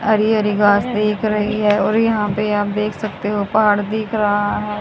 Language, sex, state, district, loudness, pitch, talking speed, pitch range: Hindi, female, Haryana, Jhajjar, -17 LUFS, 210 Hz, 210 wpm, 205-215 Hz